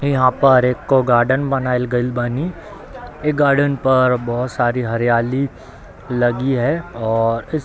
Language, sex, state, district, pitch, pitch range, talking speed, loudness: Hindi, male, Bihar, Darbhanga, 130 Hz, 120-140 Hz, 150 wpm, -17 LUFS